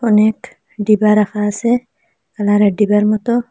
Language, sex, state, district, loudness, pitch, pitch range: Bengali, female, Assam, Hailakandi, -15 LUFS, 215 Hz, 210-235 Hz